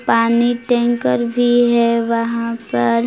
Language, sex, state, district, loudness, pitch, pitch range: Hindi, female, Jharkhand, Palamu, -16 LUFS, 235 Hz, 230-240 Hz